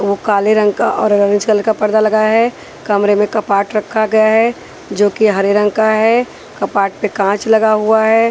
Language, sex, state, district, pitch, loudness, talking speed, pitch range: Hindi, female, Punjab, Pathankot, 215 Hz, -13 LUFS, 210 wpm, 205-220 Hz